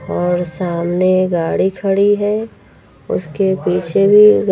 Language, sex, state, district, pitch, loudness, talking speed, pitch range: Hindi, female, Uttar Pradesh, Lucknow, 185 Hz, -15 LUFS, 120 wpm, 175-200 Hz